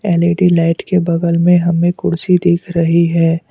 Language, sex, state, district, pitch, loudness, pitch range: Hindi, male, Assam, Kamrup Metropolitan, 170 Hz, -13 LUFS, 170-175 Hz